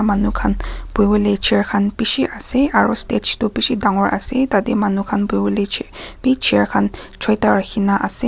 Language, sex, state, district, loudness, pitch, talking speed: Nagamese, female, Nagaland, Kohima, -17 LUFS, 205 Hz, 190 wpm